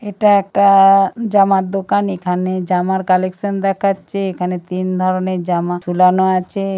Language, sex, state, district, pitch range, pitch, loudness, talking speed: Bengali, female, West Bengal, Purulia, 185-195 Hz, 190 Hz, -15 LUFS, 135 wpm